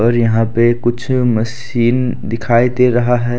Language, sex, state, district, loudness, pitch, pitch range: Hindi, male, Jharkhand, Deoghar, -15 LUFS, 120 Hz, 115-125 Hz